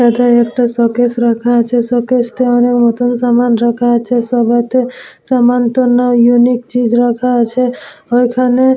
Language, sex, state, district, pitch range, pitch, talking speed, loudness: Bengali, female, West Bengal, Purulia, 240-245 Hz, 245 Hz, 150 wpm, -12 LUFS